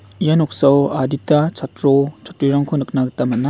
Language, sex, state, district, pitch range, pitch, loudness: Garo, male, Meghalaya, West Garo Hills, 135-150 Hz, 140 Hz, -17 LUFS